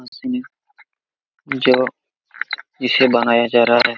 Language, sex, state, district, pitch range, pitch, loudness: Hindi, male, Jharkhand, Jamtara, 120-135 Hz, 125 Hz, -17 LUFS